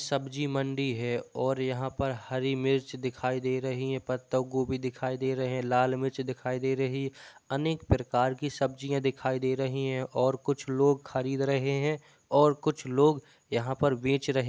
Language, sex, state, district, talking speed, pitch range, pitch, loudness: Hindi, male, Uttar Pradesh, Jalaun, 190 wpm, 130-140 Hz, 130 Hz, -30 LUFS